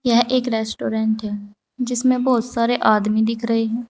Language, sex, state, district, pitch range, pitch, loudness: Hindi, female, Uttar Pradesh, Saharanpur, 220-245 Hz, 230 Hz, -20 LUFS